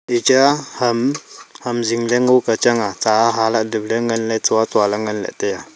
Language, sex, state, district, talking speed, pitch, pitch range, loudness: Wancho, male, Arunachal Pradesh, Longding, 200 wpm, 115 Hz, 110-125 Hz, -17 LUFS